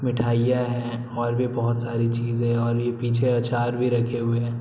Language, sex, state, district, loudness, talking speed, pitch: Hindi, male, Bihar, Araria, -24 LUFS, 210 wpm, 120 Hz